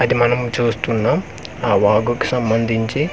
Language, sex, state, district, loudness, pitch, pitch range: Telugu, male, Andhra Pradesh, Manyam, -18 LUFS, 120 Hz, 115-125 Hz